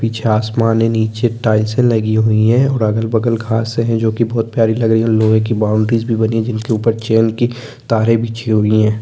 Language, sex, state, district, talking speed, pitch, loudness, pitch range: Hindi, male, Chhattisgarh, Sarguja, 225 wpm, 115 Hz, -15 LUFS, 110-115 Hz